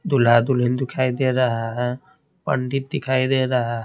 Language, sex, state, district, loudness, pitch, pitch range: Hindi, male, Bihar, Patna, -21 LUFS, 130 Hz, 125-130 Hz